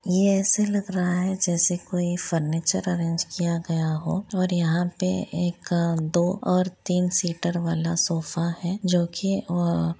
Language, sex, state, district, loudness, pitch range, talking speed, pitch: Hindi, female, Jharkhand, Jamtara, -24 LUFS, 170-185 Hz, 160 wpm, 175 Hz